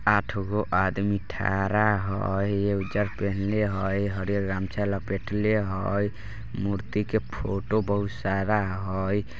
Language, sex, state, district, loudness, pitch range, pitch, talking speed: Bajjika, male, Bihar, Vaishali, -27 LUFS, 95-105 Hz, 100 Hz, 120 wpm